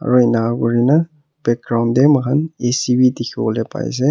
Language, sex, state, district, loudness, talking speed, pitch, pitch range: Nagamese, male, Nagaland, Kohima, -16 LUFS, 175 wpm, 125 Hz, 120-145 Hz